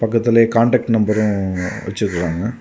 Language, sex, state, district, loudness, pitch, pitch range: Tamil, male, Tamil Nadu, Kanyakumari, -17 LUFS, 110 Hz, 95-115 Hz